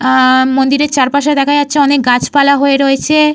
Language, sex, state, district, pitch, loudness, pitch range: Bengali, female, Jharkhand, Jamtara, 280 Hz, -10 LUFS, 260-290 Hz